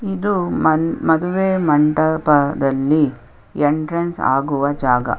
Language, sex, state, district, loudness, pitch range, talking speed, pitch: Kannada, female, Karnataka, Chamarajanagar, -17 LUFS, 140-170 Hz, 80 wpm, 155 Hz